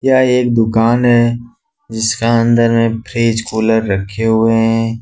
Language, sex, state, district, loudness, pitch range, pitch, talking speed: Hindi, male, Jharkhand, Ranchi, -13 LUFS, 110-120 Hz, 115 Hz, 145 wpm